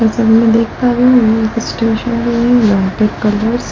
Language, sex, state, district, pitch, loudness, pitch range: Hindi, female, Delhi, New Delhi, 230 Hz, -12 LUFS, 220-235 Hz